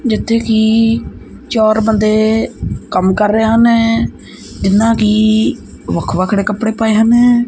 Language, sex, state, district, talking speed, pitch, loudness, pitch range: Punjabi, male, Punjab, Kapurthala, 120 wpm, 220 Hz, -13 LUFS, 210-225 Hz